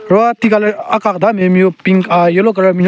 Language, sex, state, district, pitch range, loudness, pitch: Rengma, male, Nagaland, Kohima, 185-215 Hz, -11 LUFS, 190 Hz